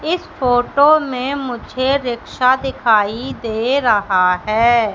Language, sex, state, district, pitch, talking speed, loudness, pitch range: Hindi, female, Madhya Pradesh, Katni, 245 Hz, 110 wpm, -16 LUFS, 225-270 Hz